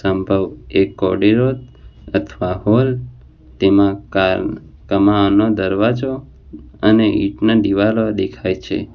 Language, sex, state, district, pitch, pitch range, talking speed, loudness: Gujarati, male, Gujarat, Valsad, 100 Hz, 95-110 Hz, 85 wpm, -16 LUFS